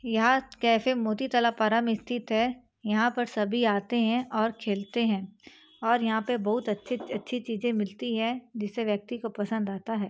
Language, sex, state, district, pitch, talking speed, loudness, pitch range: Hindi, female, Chhattisgarh, Bastar, 225 Hz, 180 wpm, -28 LUFS, 215-240 Hz